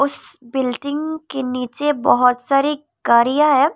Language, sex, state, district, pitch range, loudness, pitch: Hindi, female, Tripura, Unakoti, 250-295 Hz, -18 LUFS, 275 Hz